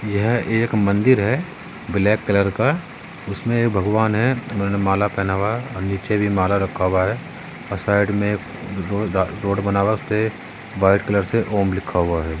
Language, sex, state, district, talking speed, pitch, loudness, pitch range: Hindi, male, Maharashtra, Sindhudurg, 175 wpm, 100 Hz, -20 LUFS, 100-115 Hz